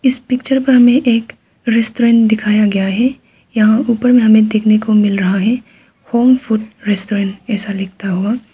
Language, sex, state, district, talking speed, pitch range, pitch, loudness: Hindi, female, Arunachal Pradesh, Papum Pare, 170 wpm, 205-245 Hz, 220 Hz, -13 LUFS